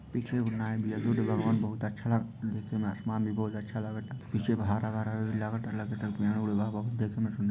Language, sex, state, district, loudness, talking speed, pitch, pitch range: Bhojpuri, male, Bihar, Sitamarhi, -32 LUFS, 200 wpm, 110 Hz, 105-115 Hz